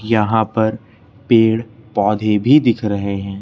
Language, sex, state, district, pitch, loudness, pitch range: Hindi, male, Madhya Pradesh, Bhopal, 110 Hz, -16 LUFS, 105-115 Hz